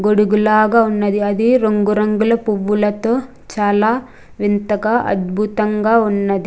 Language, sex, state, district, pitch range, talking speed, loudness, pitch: Telugu, female, Andhra Pradesh, Krishna, 205-225 Hz, 95 wpm, -16 LUFS, 210 Hz